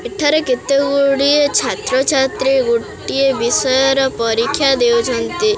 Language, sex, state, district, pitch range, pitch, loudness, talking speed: Odia, male, Odisha, Khordha, 255-295 Hz, 275 Hz, -15 LUFS, 95 wpm